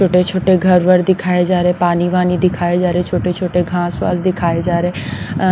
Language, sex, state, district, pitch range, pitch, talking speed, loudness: Hindi, female, Punjab, Pathankot, 175-185 Hz, 180 Hz, 185 wpm, -15 LUFS